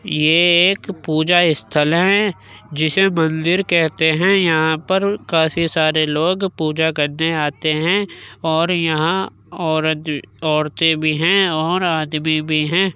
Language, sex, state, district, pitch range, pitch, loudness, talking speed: Hindi, male, Uttar Pradesh, Jyotiba Phule Nagar, 155-180 Hz, 160 Hz, -17 LUFS, 130 wpm